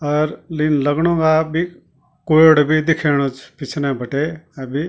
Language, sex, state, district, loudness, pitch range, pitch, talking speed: Garhwali, male, Uttarakhand, Tehri Garhwal, -17 LUFS, 145-160 Hz, 150 Hz, 145 wpm